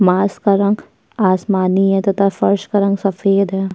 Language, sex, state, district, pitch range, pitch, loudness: Hindi, female, Uttar Pradesh, Jyotiba Phule Nagar, 190-200 Hz, 195 Hz, -16 LUFS